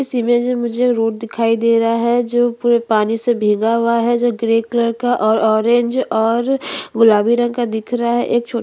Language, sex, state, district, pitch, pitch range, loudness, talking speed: Hindi, female, Chhattisgarh, Bastar, 235 Hz, 225-240 Hz, -16 LUFS, 145 wpm